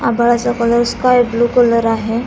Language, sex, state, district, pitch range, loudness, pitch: Marathi, female, Maharashtra, Aurangabad, 230-245 Hz, -14 LUFS, 235 Hz